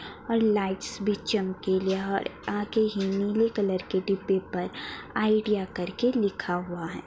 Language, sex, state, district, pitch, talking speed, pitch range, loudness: Hindi, female, Bihar, Madhepura, 195 Hz, 160 wpm, 190-215 Hz, -28 LUFS